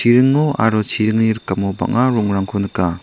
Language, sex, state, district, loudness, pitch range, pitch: Garo, male, Meghalaya, South Garo Hills, -17 LUFS, 100-120 Hz, 110 Hz